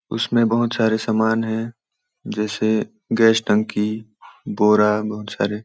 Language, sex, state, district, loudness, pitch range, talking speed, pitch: Hindi, male, Chhattisgarh, Balrampur, -20 LUFS, 105-115 Hz, 125 wpm, 110 Hz